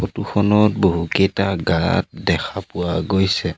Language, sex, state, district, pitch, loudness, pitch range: Assamese, male, Assam, Sonitpur, 95 Hz, -19 LUFS, 90-105 Hz